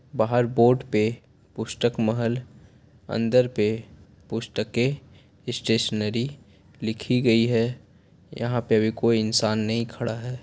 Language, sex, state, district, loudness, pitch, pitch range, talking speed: Hindi, male, Chhattisgarh, Korba, -24 LUFS, 115 Hz, 110-120 Hz, 115 wpm